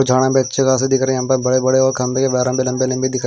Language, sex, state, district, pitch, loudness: Hindi, male, Himachal Pradesh, Shimla, 130 Hz, -16 LUFS